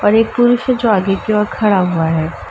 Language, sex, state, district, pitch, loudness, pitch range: Hindi, female, Uttar Pradesh, Ghazipur, 210 Hz, -14 LUFS, 185-225 Hz